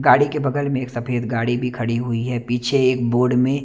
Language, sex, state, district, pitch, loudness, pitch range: Hindi, male, Chandigarh, Chandigarh, 125 Hz, -20 LUFS, 120-130 Hz